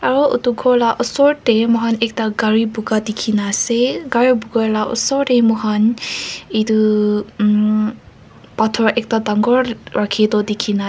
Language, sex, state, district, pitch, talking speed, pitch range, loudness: Nagamese, female, Nagaland, Kohima, 225 Hz, 155 wpm, 215-240 Hz, -16 LUFS